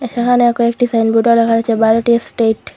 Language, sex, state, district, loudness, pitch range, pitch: Bengali, female, Assam, Hailakandi, -13 LUFS, 225-240 Hz, 235 Hz